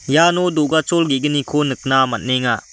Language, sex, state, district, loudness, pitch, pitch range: Garo, male, Meghalaya, West Garo Hills, -17 LUFS, 145 Hz, 130-160 Hz